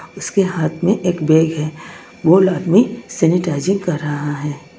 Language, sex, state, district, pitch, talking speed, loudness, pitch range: Hindi, female, Tripura, West Tripura, 170 Hz, 150 wpm, -17 LUFS, 155-190 Hz